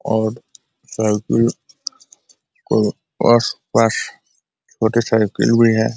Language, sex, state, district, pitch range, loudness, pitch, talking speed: Hindi, male, Jharkhand, Jamtara, 110-115 Hz, -17 LUFS, 115 Hz, 90 wpm